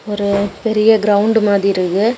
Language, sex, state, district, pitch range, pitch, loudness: Tamil, female, Tamil Nadu, Kanyakumari, 200-220 Hz, 205 Hz, -14 LUFS